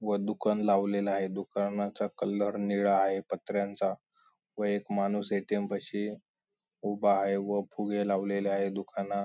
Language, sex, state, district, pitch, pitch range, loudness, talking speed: Marathi, male, Maharashtra, Sindhudurg, 100 Hz, 100-105 Hz, -31 LUFS, 135 wpm